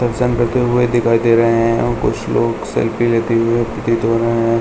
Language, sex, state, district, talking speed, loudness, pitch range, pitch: Hindi, male, Uttar Pradesh, Hamirpur, 220 wpm, -15 LUFS, 115-120 Hz, 115 Hz